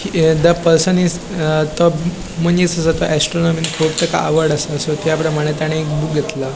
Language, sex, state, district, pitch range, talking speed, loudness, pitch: Konkani, male, Goa, North and South Goa, 155-170 Hz, 165 wpm, -16 LUFS, 160 Hz